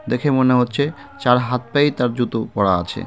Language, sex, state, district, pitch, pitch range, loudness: Bengali, male, West Bengal, Cooch Behar, 125 Hz, 115-135 Hz, -19 LUFS